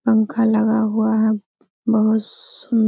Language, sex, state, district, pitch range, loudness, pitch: Hindi, female, Uttar Pradesh, Hamirpur, 220-230 Hz, -19 LUFS, 220 Hz